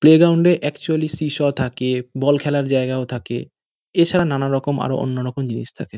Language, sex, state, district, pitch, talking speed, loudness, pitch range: Bengali, male, West Bengal, North 24 Parganas, 140 Hz, 160 wpm, -19 LUFS, 130-155 Hz